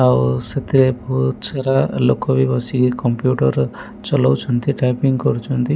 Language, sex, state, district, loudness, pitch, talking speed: Odia, male, Odisha, Malkangiri, -18 LUFS, 125 Hz, 105 wpm